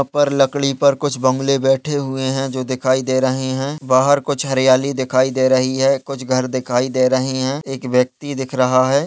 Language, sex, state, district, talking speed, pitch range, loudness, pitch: Hindi, male, Chhattisgarh, Kabirdham, 210 wpm, 130-140 Hz, -17 LUFS, 130 Hz